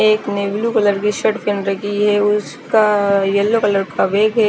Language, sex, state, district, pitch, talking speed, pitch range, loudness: Hindi, female, Chandigarh, Chandigarh, 205 Hz, 200 wpm, 200-215 Hz, -16 LUFS